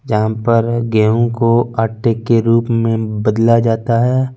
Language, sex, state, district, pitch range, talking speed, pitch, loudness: Hindi, male, Punjab, Fazilka, 110-115 Hz, 165 wpm, 115 Hz, -14 LUFS